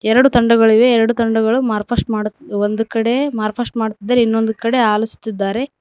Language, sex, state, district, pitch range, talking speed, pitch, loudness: Kannada, female, Karnataka, Koppal, 215-240 Hz, 135 wpm, 225 Hz, -16 LUFS